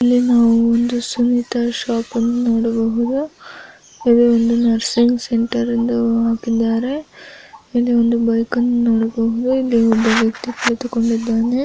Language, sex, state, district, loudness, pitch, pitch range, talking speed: Kannada, male, Karnataka, Gulbarga, -17 LUFS, 235 Hz, 230-245 Hz, 110 wpm